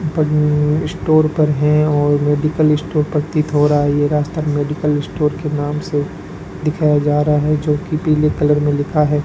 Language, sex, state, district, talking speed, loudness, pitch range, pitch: Hindi, male, Rajasthan, Bikaner, 190 wpm, -16 LUFS, 145-150 Hz, 150 Hz